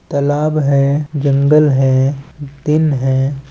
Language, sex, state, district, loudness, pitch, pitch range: Chhattisgarhi, male, Chhattisgarh, Balrampur, -14 LUFS, 140 Hz, 135-150 Hz